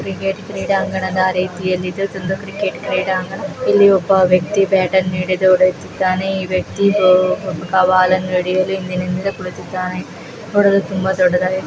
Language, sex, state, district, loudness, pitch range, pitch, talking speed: Kannada, female, Karnataka, Mysore, -16 LUFS, 185-195 Hz, 185 Hz, 120 wpm